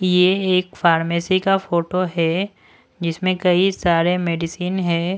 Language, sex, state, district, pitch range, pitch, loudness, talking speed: Hindi, male, Punjab, Pathankot, 170-185 Hz, 180 Hz, -19 LUFS, 125 wpm